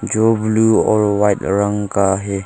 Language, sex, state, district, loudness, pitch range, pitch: Hindi, male, Arunachal Pradesh, Longding, -15 LUFS, 100-110 Hz, 105 Hz